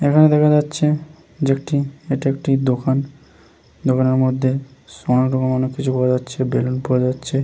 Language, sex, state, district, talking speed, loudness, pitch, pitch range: Bengali, male, West Bengal, Paschim Medinipur, 135 wpm, -19 LUFS, 135 Hz, 130-145 Hz